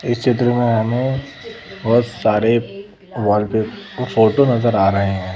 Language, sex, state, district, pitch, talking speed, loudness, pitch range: Hindi, female, Madhya Pradesh, Bhopal, 120 Hz, 155 wpm, -17 LUFS, 110-125 Hz